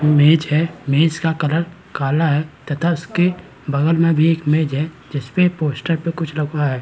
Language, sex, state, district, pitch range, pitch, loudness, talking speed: Hindi, male, Uttarakhand, Tehri Garhwal, 145-165 Hz, 155 Hz, -18 LUFS, 185 wpm